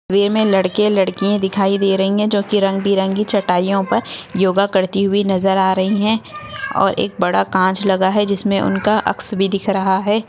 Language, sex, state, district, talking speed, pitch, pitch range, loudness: Hindi, female, Goa, North and South Goa, 200 wpm, 195 Hz, 190-205 Hz, -16 LUFS